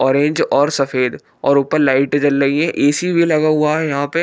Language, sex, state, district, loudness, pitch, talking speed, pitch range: Hindi, male, Bihar, Katihar, -15 LUFS, 145 Hz, 225 wpm, 140-155 Hz